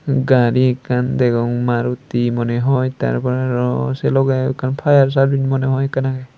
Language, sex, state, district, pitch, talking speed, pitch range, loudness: Chakma, male, Tripura, Unakoti, 130 Hz, 170 wpm, 120-135 Hz, -17 LUFS